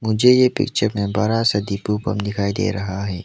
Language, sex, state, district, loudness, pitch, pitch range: Hindi, male, Arunachal Pradesh, Lower Dibang Valley, -19 LUFS, 105 Hz, 100-110 Hz